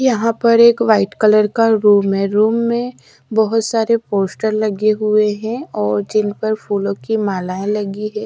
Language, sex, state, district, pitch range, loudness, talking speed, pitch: Hindi, female, Odisha, Sambalpur, 205-225 Hz, -16 LUFS, 175 wpm, 215 Hz